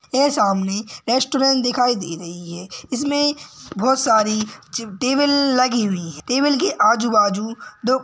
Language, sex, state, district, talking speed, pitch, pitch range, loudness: Hindi, male, Maharashtra, Sindhudurg, 140 wpm, 240 Hz, 210-265 Hz, -19 LUFS